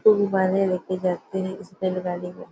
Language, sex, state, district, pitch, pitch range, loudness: Hindi, female, Maharashtra, Nagpur, 185 Hz, 185-190 Hz, -25 LUFS